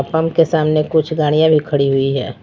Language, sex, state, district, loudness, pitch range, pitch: Hindi, female, Jharkhand, Palamu, -15 LUFS, 140-160 Hz, 155 Hz